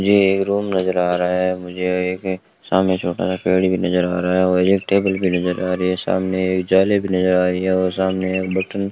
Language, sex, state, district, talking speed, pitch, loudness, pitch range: Hindi, male, Rajasthan, Bikaner, 255 wpm, 95 Hz, -18 LUFS, 90-95 Hz